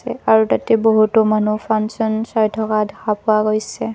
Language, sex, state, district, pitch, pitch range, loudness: Assamese, female, Assam, Kamrup Metropolitan, 220 Hz, 215-220 Hz, -17 LUFS